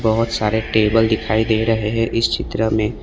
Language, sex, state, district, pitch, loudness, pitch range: Hindi, male, Assam, Kamrup Metropolitan, 110 Hz, -18 LUFS, 110-115 Hz